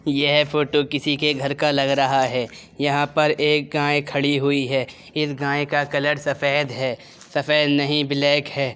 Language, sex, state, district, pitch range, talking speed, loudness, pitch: Hindi, male, Uttar Pradesh, Jyotiba Phule Nagar, 140-150 Hz, 190 wpm, -20 LUFS, 145 Hz